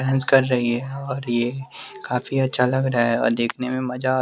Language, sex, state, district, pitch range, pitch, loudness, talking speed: Hindi, male, Bihar, West Champaran, 120-135 Hz, 130 Hz, -22 LUFS, 215 wpm